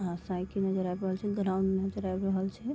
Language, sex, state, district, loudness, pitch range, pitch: Maithili, female, Bihar, Vaishali, -32 LUFS, 185-195 Hz, 190 Hz